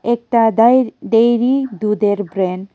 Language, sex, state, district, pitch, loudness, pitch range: Bengali, female, Tripura, West Tripura, 225 Hz, -15 LUFS, 205-240 Hz